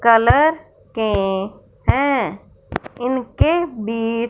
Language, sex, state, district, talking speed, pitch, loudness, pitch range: Hindi, male, Punjab, Fazilka, 70 wpm, 235 Hz, -19 LUFS, 220-275 Hz